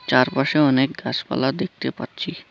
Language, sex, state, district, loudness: Bengali, male, West Bengal, Cooch Behar, -21 LUFS